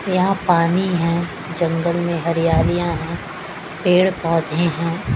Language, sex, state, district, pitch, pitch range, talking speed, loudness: Hindi, female, Chhattisgarh, Raipur, 170 Hz, 165-180 Hz, 115 wpm, -19 LUFS